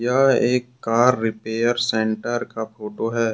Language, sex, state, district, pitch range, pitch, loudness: Hindi, male, Jharkhand, Deoghar, 110-120 Hz, 115 Hz, -21 LUFS